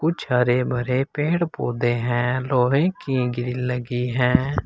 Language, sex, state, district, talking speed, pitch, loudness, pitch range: Hindi, male, Uttar Pradesh, Saharanpur, 140 wpm, 125 Hz, -22 LUFS, 125-135 Hz